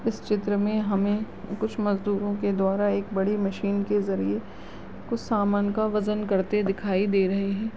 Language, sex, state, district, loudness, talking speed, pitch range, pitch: Hindi, female, Bihar, Supaul, -26 LUFS, 170 wpm, 195-210 Hz, 205 Hz